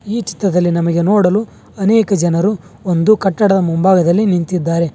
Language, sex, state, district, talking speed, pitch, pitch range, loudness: Kannada, male, Karnataka, Bangalore, 120 wpm, 190 Hz, 175-205 Hz, -14 LUFS